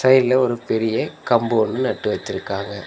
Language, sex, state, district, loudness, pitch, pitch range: Tamil, male, Tamil Nadu, Nilgiris, -20 LUFS, 115 Hz, 105-125 Hz